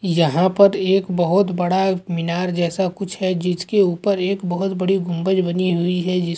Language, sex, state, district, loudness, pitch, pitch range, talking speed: Hindi, male, Chhattisgarh, Sukma, -19 LUFS, 185 Hz, 175-190 Hz, 190 wpm